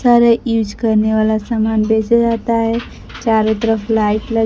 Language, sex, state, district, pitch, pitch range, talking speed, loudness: Hindi, female, Bihar, Kaimur, 225 Hz, 220-230 Hz, 175 wpm, -15 LUFS